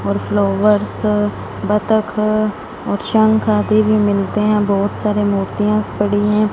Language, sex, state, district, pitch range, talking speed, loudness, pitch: Hindi, female, Punjab, Fazilka, 205-215 Hz, 130 wpm, -16 LUFS, 210 Hz